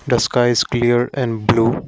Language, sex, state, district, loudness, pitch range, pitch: English, male, Assam, Kamrup Metropolitan, -17 LUFS, 115-125 Hz, 120 Hz